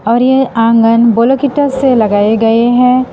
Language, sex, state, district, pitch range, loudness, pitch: Hindi, female, Assam, Sonitpur, 230-260 Hz, -10 LUFS, 235 Hz